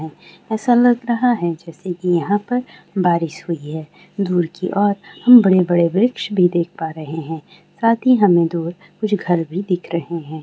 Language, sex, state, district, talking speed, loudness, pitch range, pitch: Maithili, female, Bihar, Sitamarhi, 185 wpm, -18 LUFS, 170-205 Hz, 180 Hz